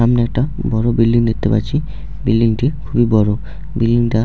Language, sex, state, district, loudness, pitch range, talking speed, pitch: Bengali, male, West Bengal, Jalpaiguri, -16 LUFS, 110-120 Hz, 210 wpm, 115 Hz